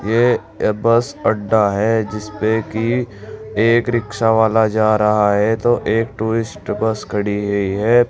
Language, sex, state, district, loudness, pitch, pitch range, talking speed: Hindi, male, Uttar Pradesh, Saharanpur, -17 LUFS, 110 Hz, 105-115 Hz, 140 wpm